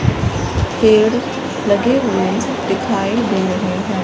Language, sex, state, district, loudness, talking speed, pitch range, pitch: Hindi, male, Rajasthan, Bikaner, -16 LUFS, 105 wpm, 180-225 Hz, 195 Hz